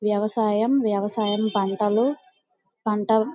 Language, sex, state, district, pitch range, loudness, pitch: Telugu, female, Andhra Pradesh, Guntur, 210-225 Hz, -23 LUFS, 215 Hz